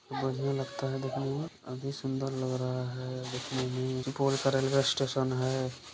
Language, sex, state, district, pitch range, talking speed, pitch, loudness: Hindi, male, Bihar, Supaul, 130-135 Hz, 170 wpm, 130 Hz, -32 LUFS